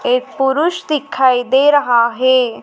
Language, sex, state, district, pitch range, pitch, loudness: Hindi, female, Madhya Pradesh, Dhar, 250-285 Hz, 260 Hz, -14 LUFS